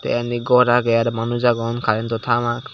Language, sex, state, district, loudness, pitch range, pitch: Chakma, male, Tripura, Dhalai, -19 LUFS, 115-120 Hz, 120 Hz